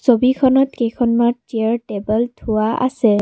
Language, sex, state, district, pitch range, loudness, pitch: Assamese, female, Assam, Kamrup Metropolitan, 220-250 Hz, -17 LUFS, 235 Hz